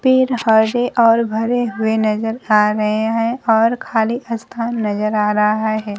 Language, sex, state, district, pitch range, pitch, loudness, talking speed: Hindi, female, Bihar, Kaimur, 215-235 Hz, 225 Hz, -16 LUFS, 160 wpm